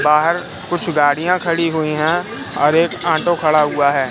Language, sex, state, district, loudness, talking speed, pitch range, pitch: Hindi, male, Madhya Pradesh, Katni, -16 LUFS, 175 wpm, 150-175 Hz, 160 Hz